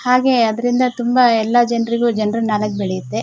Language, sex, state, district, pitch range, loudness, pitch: Kannada, female, Karnataka, Shimoga, 220-245 Hz, -16 LUFS, 235 Hz